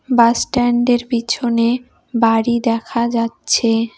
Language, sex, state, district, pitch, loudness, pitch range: Bengali, female, West Bengal, Cooch Behar, 235 Hz, -16 LUFS, 230-240 Hz